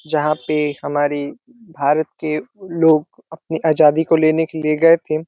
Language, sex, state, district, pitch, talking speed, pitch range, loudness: Hindi, male, Uttar Pradesh, Deoria, 155 Hz, 160 wpm, 150-165 Hz, -17 LUFS